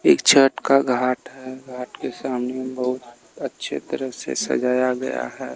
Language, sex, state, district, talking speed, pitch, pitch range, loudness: Hindi, male, Bihar, Katihar, 160 wpm, 130 Hz, 125-130 Hz, -21 LUFS